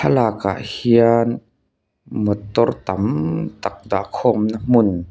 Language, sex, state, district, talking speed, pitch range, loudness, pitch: Mizo, male, Mizoram, Aizawl, 80 wpm, 105-115 Hz, -19 LUFS, 110 Hz